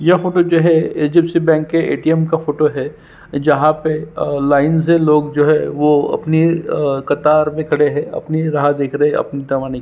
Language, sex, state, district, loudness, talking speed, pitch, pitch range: Hindi, male, Chhattisgarh, Sukma, -15 LUFS, 220 wpm, 150 Hz, 145-160 Hz